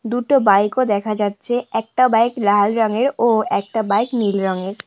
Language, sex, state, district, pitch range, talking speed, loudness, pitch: Bengali, female, West Bengal, Cooch Behar, 205-240 Hz, 170 wpm, -18 LUFS, 220 Hz